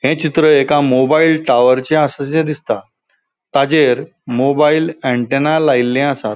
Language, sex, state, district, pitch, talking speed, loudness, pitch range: Konkani, male, Goa, North and South Goa, 145 Hz, 115 wpm, -14 LUFS, 130-155 Hz